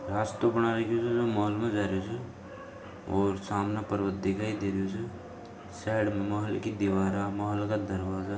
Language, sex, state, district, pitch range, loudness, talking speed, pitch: Marwari, male, Rajasthan, Nagaur, 100-110 Hz, -30 LUFS, 185 wpm, 105 Hz